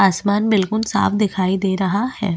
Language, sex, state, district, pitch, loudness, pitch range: Hindi, female, Chhattisgarh, Bastar, 200 Hz, -18 LUFS, 190-210 Hz